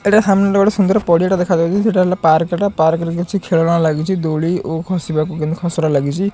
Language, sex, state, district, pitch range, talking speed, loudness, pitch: Odia, male, Odisha, Khordha, 160-195 Hz, 210 wpm, -15 LUFS, 175 Hz